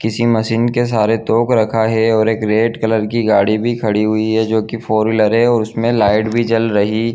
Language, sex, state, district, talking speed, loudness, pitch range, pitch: Hindi, male, Chhattisgarh, Bilaspur, 245 wpm, -15 LUFS, 110-115 Hz, 110 Hz